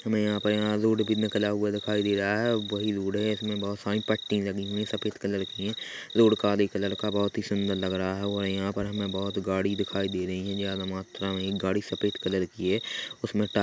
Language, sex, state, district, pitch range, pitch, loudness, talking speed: Hindi, male, Chhattisgarh, Korba, 100-105 Hz, 100 Hz, -28 LUFS, 255 wpm